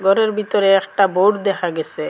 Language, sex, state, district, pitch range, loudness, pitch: Bengali, female, Assam, Hailakandi, 190-205 Hz, -17 LUFS, 195 Hz